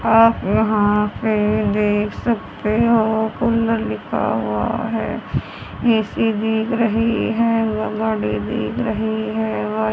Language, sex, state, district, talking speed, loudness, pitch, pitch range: Hindi, female, Haryana, Charkhi Dadri, 60 wpm, -19 LUFS, 220 Hz, 210-225 Hz